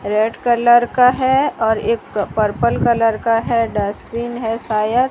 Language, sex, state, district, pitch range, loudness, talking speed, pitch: Hindi, female, Odisha, Sambalpur, 215-240 Hz, -17 LUFS, 165 wpm, 230 Hz